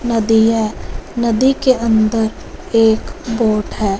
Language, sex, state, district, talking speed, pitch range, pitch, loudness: Hindi, female, Punjab, Fazilka, 120 wpm, 220-235 Hz, 225 Hz, -15 LUFS